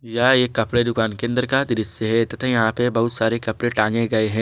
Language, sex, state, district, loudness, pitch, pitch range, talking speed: Hindi, male, Jharkhand, Garhwa, -20 LUFS, 115 Hz, 110-120 Hz, 245 wpm